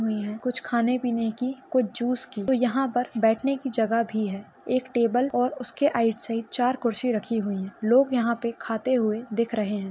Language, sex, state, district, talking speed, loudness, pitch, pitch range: Hindi, female, Maharashtra, Pune, 225 wpm, -25 LUFS, 235 Hz, 225-255 Hz